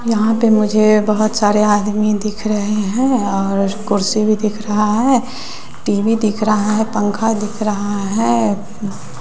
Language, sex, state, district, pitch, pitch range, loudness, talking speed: Hindi, female, Bihar, West Champaran, 215 Hz, 205-220 Hz, -16 LUFS, 150 wpm